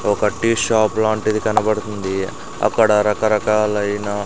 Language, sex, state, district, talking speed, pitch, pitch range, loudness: Telugu, male, Andhra Pradesh, Sri Satya Sai, 125 wpm, 105 Hz, 105-110 Hz, -18 LUFS